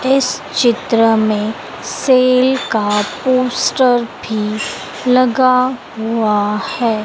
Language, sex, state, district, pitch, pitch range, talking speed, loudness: Hindi, female, Madhya Pradesh, Dhar, 235 Hz, 215-255 Hz, 85 wpm, -15 LUFS